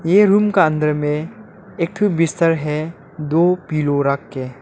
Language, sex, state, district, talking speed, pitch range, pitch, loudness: Hindi, male, Arunachal Pradesh, Lower Dibang Valley, 180 wpm, 150-190 Hz, 165 Hz, -17 LUFS